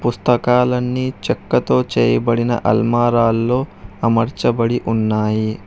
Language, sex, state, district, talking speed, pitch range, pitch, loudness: Telugu, male, Telangana, Hyderabad, 65 wpm, 105-120 Hz, 115 Hz, -17 LUFS